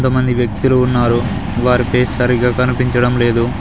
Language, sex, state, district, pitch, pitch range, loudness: Telugu, male, Telangana, Mahabubabad, 125 Hz, 120-125 Hz, -14 LUFS